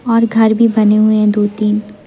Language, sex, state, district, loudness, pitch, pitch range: Hindi, female, Madhya Pradesh, Umaria, -12 LUFS, 215 Hz, 210-225 Hz